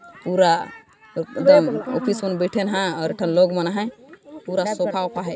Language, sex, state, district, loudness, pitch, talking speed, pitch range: Sadri, female, Chhattisgarh, Jashpur, -21 LUFS, 195 Hz, 170 wpm, 180-260 Hz